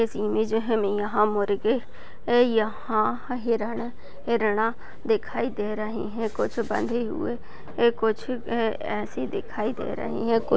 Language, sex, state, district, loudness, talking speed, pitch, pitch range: Hindi, female, Chhattisgarh, Kabirdham, -26 LUFS, 140 wpm, 225 Hz, 215-235 Hz